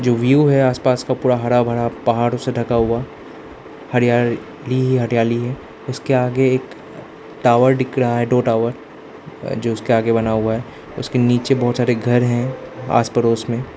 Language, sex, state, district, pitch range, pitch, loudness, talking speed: Hindi, male, Arunachal Pradesh, Lower Dibang Valley, 120-130 Hz, 120 Hz, -18 LUFS, 165 wpm